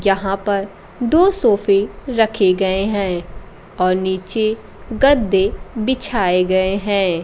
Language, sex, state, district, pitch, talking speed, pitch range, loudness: Hindi, female, Bihar, Kaimur, 200 Hz, 110 wpm, 190-225 Hz, -17 LUFS